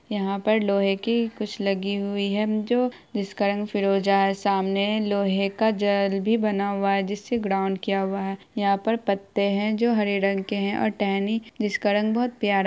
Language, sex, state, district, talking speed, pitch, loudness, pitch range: Hindi, female, Bihar, Araria, 200 wpm, 200 Hz, -24 LUFS, 195-215 Hz